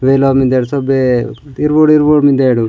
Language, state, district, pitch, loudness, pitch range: Gondi, Chhattisgarh, Sukma, 135 Hz, -11 LUFS, 130-145 Hz